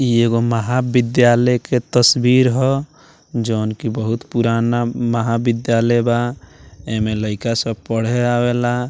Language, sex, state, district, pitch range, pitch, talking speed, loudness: Bhojpuri, male, Bihar, Muzaffarpur, 115-125 Hz, 120 Hz, 115 wpm, -17 LUFS